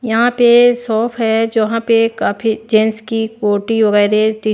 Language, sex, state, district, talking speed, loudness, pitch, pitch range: Hindi, female, Maharashtra, Washim, 145 wpm, -14 LUFS, 225 Hz, 215-230 Hz